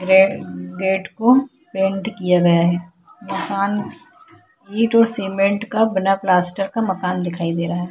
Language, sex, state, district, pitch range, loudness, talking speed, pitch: Hindi, female, Chhattisgarh, Korba, 180-210 Hz, -18 LUFS, 150 wpm, 195 Hz